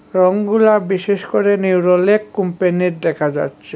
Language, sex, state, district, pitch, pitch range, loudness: Bengali, male, Assam, Hailakandi, 185 Hz, 180-205 Hz, -15 LUFS